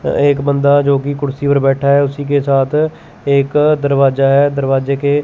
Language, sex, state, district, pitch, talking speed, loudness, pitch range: Hindi, male, Chandigarh, Chandigarh, 140 Hz, 170 wpm, -13 LUFS, 140-145 Hz